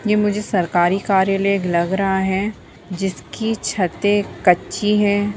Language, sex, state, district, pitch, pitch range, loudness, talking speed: Bhojpuri, female, Bihar, Saran, 195 Hz, 185-205 Hz, -19 LUFS, 125 wpm